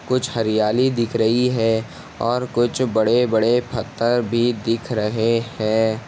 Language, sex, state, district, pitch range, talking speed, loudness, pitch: Hindi, male, Uttar Pradesh, Etah, 110-120 Hz, 140 wpm, -20 LUFS, 115 Hz